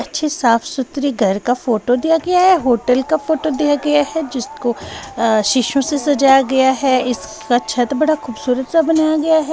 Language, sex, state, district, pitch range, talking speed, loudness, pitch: Hindi, female, Bihar, West Champaran, 245-310 Hz, 180 wpm, -16 LUFS, 270 Hz